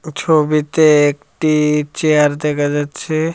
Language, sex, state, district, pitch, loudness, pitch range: Bengali, male, Tripura, Dhalai, 150 Hz, -15 LUFS, 145-155 Hz